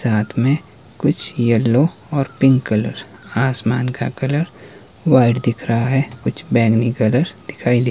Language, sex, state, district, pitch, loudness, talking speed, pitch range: Hindi, male, Himachal Pradesh, Shimla, 125 Hz, -18 LUFS, 150 wpm, 115-135 Hz